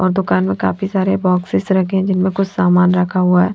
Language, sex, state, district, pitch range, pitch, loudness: Hindi, female, Haryana, Jhajjar, 180-190 Hz, 185 Hz, -15 LUFS